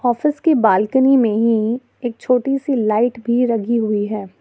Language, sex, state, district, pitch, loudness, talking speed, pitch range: Hindi, female, Jharkhand, Ranchi, 240 Hz, -17 LUFS, 175 wpm, 220-260 Hz